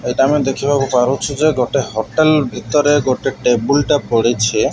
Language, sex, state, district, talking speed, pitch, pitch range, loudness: Odia, male, Odisha, Malkangiri, 165 wpm, 135 Hz, 120-145 Hz, -15 LUFS